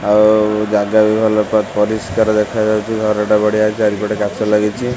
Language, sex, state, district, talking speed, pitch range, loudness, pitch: Odia, male, Odisha, Khordha, 145 wpm, 105-110 Hz, -15 LUFS, 105 Hz